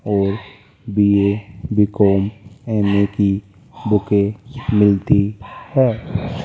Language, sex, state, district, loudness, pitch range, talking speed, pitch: Hindi, male, Rajasthan, Jaipur, -18 LUFS, 100-110 Hz, 85 wpm, 105 Hz